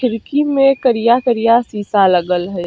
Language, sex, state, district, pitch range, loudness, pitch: Bajjika, female, Bihar, Vaishali, 195-250 Hz, -14 LUFS, 230 Hz